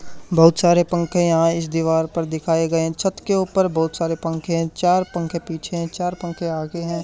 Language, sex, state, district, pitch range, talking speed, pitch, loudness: Hindi, male, Haryana, Charkhi Dadri, 165-175 Hz, 215 wpm, 165 Hz, -20 LUFS